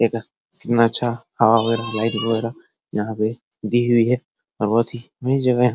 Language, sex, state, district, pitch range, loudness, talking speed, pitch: Hindi, male, Bihar, Araria, 115-120 Hz, -20 LUFS, 200 wpm, 115 Hz